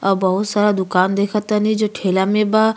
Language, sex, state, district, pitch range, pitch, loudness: Bhojpuri, female, Uttar Pradesh, Gorakhpur, 190-210 Hz, 205 Hz, -17 LUFS